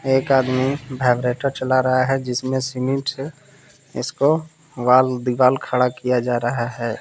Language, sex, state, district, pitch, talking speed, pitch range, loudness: Hindi, male, Jharkhand, Palamu, 130 Hz, 145 wpm, 125-135 Hz, -20 LUFS